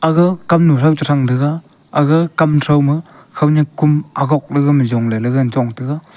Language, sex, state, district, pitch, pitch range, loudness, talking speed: Wancho, male, Arunachal Pradesh, Longding, 150 Hz, 140-160 Hz, -14 LUFS, 175 wpm